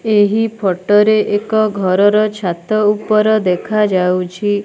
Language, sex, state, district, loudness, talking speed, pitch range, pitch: Odia, female, Odisha, Nuapada, -14 LUFS, 105 wpm, 190-215 Hz, 210 Hz